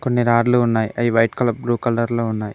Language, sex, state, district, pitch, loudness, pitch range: Telugu, male, Telangana, Mahabubabad, 120 Hz, -18 LUFS, 115-120 Hz